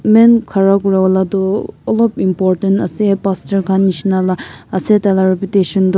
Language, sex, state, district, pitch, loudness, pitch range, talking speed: Nagamese, male, Nagaland, Kohima, 195 Hz, -14 LUFS, 190-200 Hz, 170 wpm